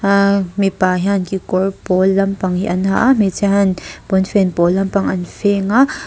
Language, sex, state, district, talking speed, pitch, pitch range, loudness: Mizo, female, Mizoram, Aizawl, 180 wpm, 195 Hz, 185-200 Hz, -16 LUFS